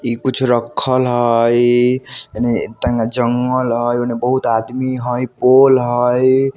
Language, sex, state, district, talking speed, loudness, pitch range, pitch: Bajjika, male, Bihar, Vaishali, 130 wpm, -15 LUFS, 120-130 Hz, 125 Hz